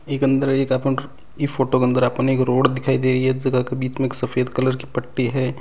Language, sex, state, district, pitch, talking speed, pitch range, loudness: Hindi, male, Rajasthan, Nagaur, 130 Hz, 255 wpm, 125-135 Hz, -20 LUFS